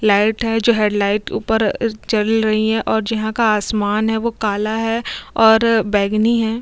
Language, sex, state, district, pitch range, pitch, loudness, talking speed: Hindi, female, Chhattisgarh, Sukma, 210-225 Hz, 220 Hz, -17 LUFS, 200 wpm